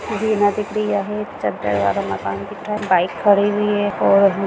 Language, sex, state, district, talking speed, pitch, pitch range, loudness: Hindi, female, Bihar, Jamui, 65 wpm, 205 Hz, 180-210 Hz, -19 LUFS